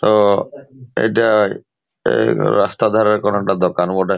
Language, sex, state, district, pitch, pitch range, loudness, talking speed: Bengali, male, West Bengal, Purulia, 105 Hz, 95-110 Hz, -16 LUFS, 115 wpm